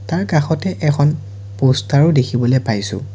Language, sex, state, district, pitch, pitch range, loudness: Assamese, male, Assam, Sonitpur, 130 Hz, 110-155 Hz, -16 LUFS